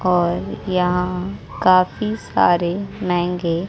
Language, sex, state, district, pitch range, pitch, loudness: Hindi, female, Bihar, West Champaran, 175-185 Hz, 180 Hz, -19 LUFS